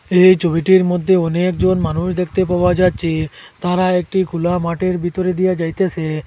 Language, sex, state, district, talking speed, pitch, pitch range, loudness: Bengali, male, Assam, Hailakandi, 145 wpm, 180 Hz, 170-185 Hz, -16 LUFS